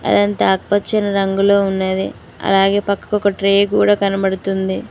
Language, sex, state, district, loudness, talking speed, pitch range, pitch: Telugu, female, Telangana, Mahabubabad, -16 LUFS, 120 wpm, 195-200 Hz, 200 Hz